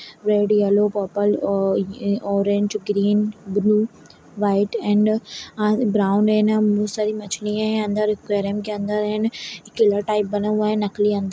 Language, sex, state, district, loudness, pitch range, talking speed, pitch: Kumaoni, female, Uttarakhand, Uttarkashi, -21 LUFS, 205-215 Hz, 140 wpm, 210 Hz